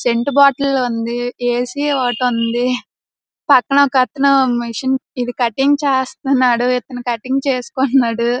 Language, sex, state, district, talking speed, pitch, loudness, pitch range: Telugu, female, Andhra Pradesh, Srikakulam, 120 wpm, 250 Hz, -16 LUFS, 245-270 Hz